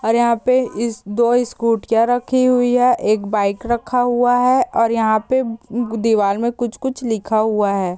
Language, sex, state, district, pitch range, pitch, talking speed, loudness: Hindi, female, Chhattisgarh, Bilaspur, 220-245 Hz, 235 Hz, 180 wpm, -17 LUFS